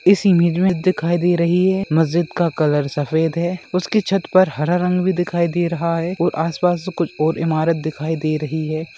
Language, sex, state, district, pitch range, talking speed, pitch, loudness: Hindi, female, Bihar, Bhagalpur, 160-180 Hz, 215 wpm, 170 Hz, -18 LUFS